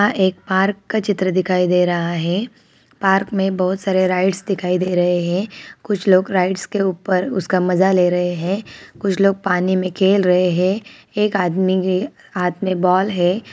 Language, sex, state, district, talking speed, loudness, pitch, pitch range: Hindi, female, Chhattisgarh, Bilaspur, 185 wpm, -18 LUFS, 185 Hz, 180-195 Hz